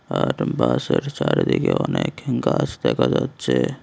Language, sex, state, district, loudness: Bengali, male, Tripura, West Tripura, -21 LUFS